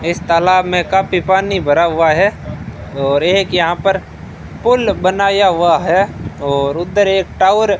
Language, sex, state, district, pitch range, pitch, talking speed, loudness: Hindi, male, Rajasthan, Bikaner, 170-195 Hz, 185 Hz, 160 wpm, -14 LUFS